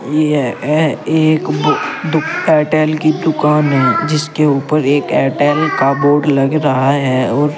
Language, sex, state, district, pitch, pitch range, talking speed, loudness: Hindi, male, Uttar Pradesh, Saharanpur, 150 Hz, 140-155 Hz, 160 wpm, -13 LUFS